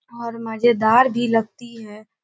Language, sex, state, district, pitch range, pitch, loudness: Hindi, female, Uttar Pradesh, Etah, 225-240 Hz, 230 Hz, -18 LUFS